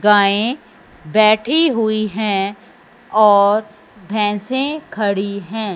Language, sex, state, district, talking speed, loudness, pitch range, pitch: Hindi, male, Punjab, Fazilka, 85 wpm, -16 LUFS, 205-225 Hz, 215 Hz